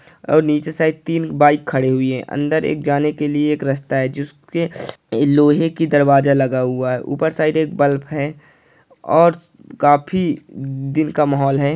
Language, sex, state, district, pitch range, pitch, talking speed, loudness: Hindi, male, Chhattisgarh, Sukma, 140-155 Hz, 145 Hz, 175 wpm, -17 LUFS